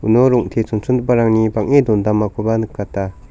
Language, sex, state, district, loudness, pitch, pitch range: Garo, male, Meghalaya, South Garo Hills, -16 LUFS, 110 Hz, 105-120 Hz